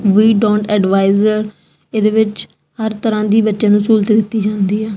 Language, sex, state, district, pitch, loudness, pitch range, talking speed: Punjabi, female, Punjab, Kapurthala, 215 Hz, -14 LUFS, 210-220 Hz, 170 wpm